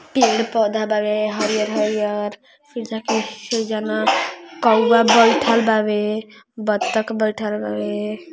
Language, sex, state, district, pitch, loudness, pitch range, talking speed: Hindi, male, Uttar Pradesh, Ghazipur, 220 Hz, -19 LUFS, 215-230 Hz, 110 wpm